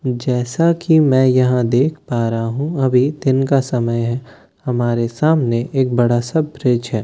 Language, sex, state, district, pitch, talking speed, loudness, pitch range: Hindi, male, Bihar, Katihar, 125 Hz, 170 wpm, -17 LUFS, 120-145 Hz